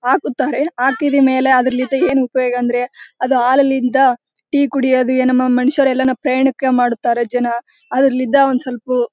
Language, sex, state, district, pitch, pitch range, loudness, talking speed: Kannada, female, Karnataka, Bellary, 260 Hz, 250-270 Hz, -15 LUFS, 130 wpm